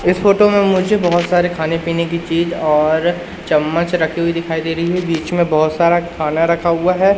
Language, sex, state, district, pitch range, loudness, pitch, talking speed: Hindi, male, Madhya Pradesh, Umaria, 165-175 Hz, -15 LUFS, 170 Hz, 215 wpm